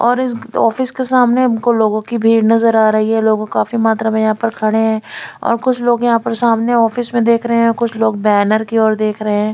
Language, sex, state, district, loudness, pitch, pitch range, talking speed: Hindi, female, Chandigarh, Chandigarh, -14 LUFS, 225 Hz, 220-235 Hz, 245 wpm